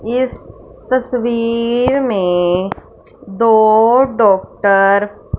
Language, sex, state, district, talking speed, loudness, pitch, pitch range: Hindi, female, Punjab, Fazilka, 65 wpm, -14 LUFS, 230 Hz, 200-250 Hz